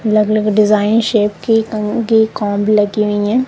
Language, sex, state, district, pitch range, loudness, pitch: Hindi, male, Punjab, Kapurthala, 210-220 Hz, -14 LUFS, 215 Hz